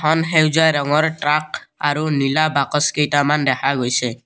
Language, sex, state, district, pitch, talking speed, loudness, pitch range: Assamese, male, Assam, Kamrup Metropolitan, 150 Hz, 140 wpm, -17 LUFS, 140-155 Hz